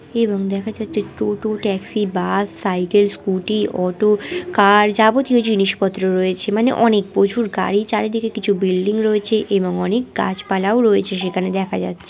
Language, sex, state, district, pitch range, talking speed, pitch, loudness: Bengali, female, West Bengal, Malda, 190-220 Hz, 140 wpm, 205 Hz, -18 LUFS